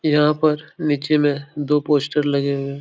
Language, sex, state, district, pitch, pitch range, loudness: Hindi, male, Uttar Pradesh, Etah, 150 Hz, 140-150 Hz, -20 LUFS